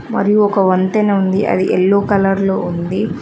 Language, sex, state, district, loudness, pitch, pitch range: Telugu, female, Telangana, Mahabubabad, -14 LUFS, 195 Hz, 185-200 Hz